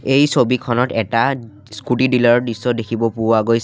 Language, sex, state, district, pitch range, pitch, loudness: Assamese, male, Assam, Sonitpur, 115-125 Hz, 120 Hz, -17 LUFS